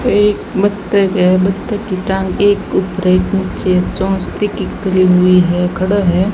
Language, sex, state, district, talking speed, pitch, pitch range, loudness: Hindi, female, Rajasthan, Bikaner, 170 wpm, 190 Hz, 185-200 Hz, -14 LUFS